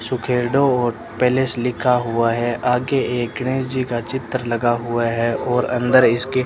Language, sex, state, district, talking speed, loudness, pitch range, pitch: Hindi, male, Rajasthan, Bikaner, 165 wpm, -19 LUFS, 120-130 Hz, 125 Hz